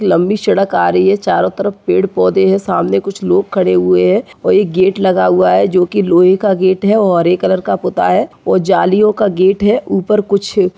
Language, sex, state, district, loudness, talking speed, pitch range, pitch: Hindi, male, West Bengal, Dakshin Dinajpur, -12 LUFS, 225 wpm, 180-200 Hz, 190 Hz